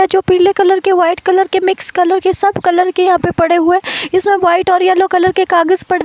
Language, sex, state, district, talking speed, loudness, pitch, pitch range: Hindi, female, Himachal Pradesh, Shimla, 250 wpm, -12 LUFS, 370 Hz, 360-380 Hz